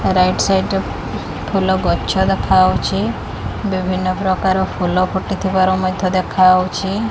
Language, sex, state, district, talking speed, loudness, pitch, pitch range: Odia, female, Odisha, Khordha, 100 wpm, -17 LUFS, 185 Hz, 185-190 Hz